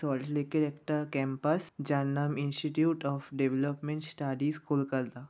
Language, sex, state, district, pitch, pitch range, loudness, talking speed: Bengali, male, West Bengal, North 24 Parganas, 145 Hz, 140-150 Hz, -32 LUFS, 115 wpm